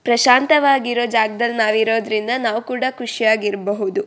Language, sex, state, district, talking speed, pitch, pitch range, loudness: Kannada, female, Karnataka, Shimoga, 120 wpm, 230 Hz, 220-250 Hz, -17 LUFS